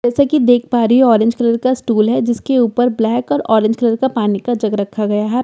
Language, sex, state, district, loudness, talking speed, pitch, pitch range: Hindi, female, Bihar, Katihar, -14 LUFS, 265 wpm, 235 Hz, 220-250 Hz